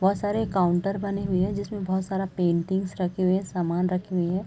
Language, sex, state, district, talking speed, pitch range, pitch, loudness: Hindi, female, Chhattisgarh, Raigarh, 230 wpm, 180-195 Hz, 190 Hz, -26 LUFS